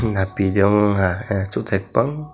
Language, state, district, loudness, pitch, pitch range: Kokborok, Tripura, West Tripura, -19 LUFS, 100 Hz, 95-110 Hz